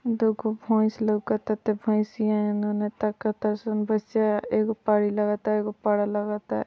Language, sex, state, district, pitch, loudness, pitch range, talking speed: Bhojpuri, female, Uttar Pradesh, Ghazipur, 215 Hz, -25 LUFS, 210-220 Hz, 145 wpm